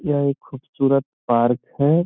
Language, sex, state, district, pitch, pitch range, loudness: Hindi, male, Bihar, Gopalganj, 140 Hz, 130-145 Hz, -20 LUFS